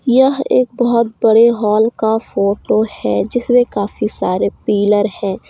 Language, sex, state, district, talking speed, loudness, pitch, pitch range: Hindi, female, Jharkhand, Deoghar, 140 wpm, -15 LUFS, 225 Hz, 210-245 Hz